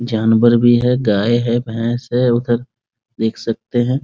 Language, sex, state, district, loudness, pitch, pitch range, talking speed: Hindi, male, Bihar, Muzaffarpur, -16 LUFS, 120 Hz, 115-120 Hz, 180 wpm